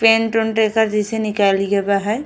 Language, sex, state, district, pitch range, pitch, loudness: Bhojpuri, female, Uttar Pradesh, Ghazipur, 200-225 Hz, 215 Hz, -17 LUFS